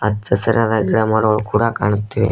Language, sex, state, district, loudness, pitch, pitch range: Kannada, male, Karnataka, Koppal, -17 LUFS, 110 Hz, 105-115 Hz